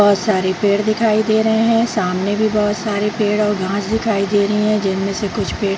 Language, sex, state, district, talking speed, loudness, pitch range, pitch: Hindi, female, Bihar, Jahanabad, 250 wpm, -17 LUFS, 200-215 Hz, 205 Hz